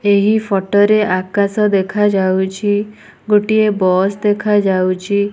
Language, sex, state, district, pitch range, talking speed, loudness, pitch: Odia, female, Odisha, Nuapada, 190-210 Hz, 90 wpm, -15 LUFS, 205 Hz